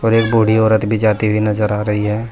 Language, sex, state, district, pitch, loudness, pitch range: Hindi, male, Uttar Pradesh, Saharanpur, 110 Hz, -15 LUFS, 105-110 Hz